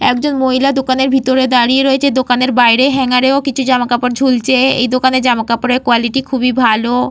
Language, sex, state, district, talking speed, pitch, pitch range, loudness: Bengali, female, Jharkhand, Jamtara, 160 wpm, 255 Hz, 245-265 Hz, -12 LUFS